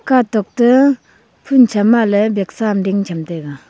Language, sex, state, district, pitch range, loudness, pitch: Wancho, female, Arunachal Pradesh, Longding, 195-245 Hz, -14 LUFS, 215 Hz